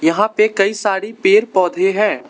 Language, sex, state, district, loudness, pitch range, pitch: Hindi, male, Arunachal Pradesh, Lower Dibang Valley, -15 LUFS, 190-215 Hz, 205 Hz